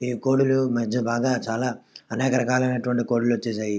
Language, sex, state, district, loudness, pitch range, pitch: Telugu, male, Andhra Pradesh, Krishna, -23 LUFS, 120-130 Hz, 125 Hz